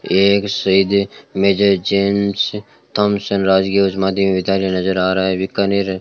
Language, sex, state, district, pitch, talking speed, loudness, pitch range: Hindi, male, Rajasthan, Bikaner, 100 Hz, 150 wpm, -16 LUFS, 95-100 Hz